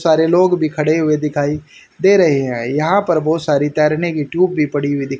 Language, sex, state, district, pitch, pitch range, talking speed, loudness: Hindi, male, Haryana, Charkhi Dadri, 155 Hz, 145-165 Hz, 230 wpm, -15 LUFS